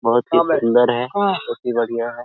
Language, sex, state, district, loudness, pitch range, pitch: Hindi, male, Bihar, Araria, -18 LUFS, 115-125 Hz, 120 Hz